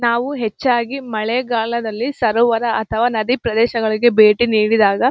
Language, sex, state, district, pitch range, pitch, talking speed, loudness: Kannada, female, Karnataka, Gulbarga, 220-240 Hz, 235 Hz, 105 wpm, -16 LUFS